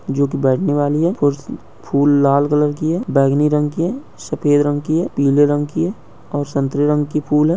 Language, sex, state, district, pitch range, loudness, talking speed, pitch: Hindi, male, Uttar Pradesh, Muzaffarnagar, 145-150 Hz, -17 LUFS, 220 wpm, 145 Hz